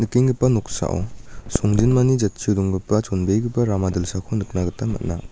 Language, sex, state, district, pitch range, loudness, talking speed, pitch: Garo, male, Meghalaya, North Garo Hills, 95-115 Hz, -21 LUFS, 125 wpm, 105 Hz